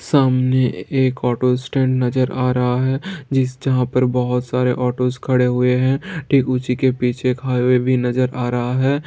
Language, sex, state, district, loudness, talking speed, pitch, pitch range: Hindi, male, Bihar, Saran, -18 LUFS, 185 wpm, 125 Hz, 125-130 Hz